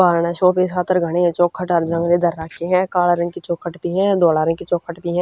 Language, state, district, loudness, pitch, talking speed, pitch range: Haryanvi, Haryana, Rohtak, -18 LUFS, 175 Hz, 255 wpm, 170-180 Hz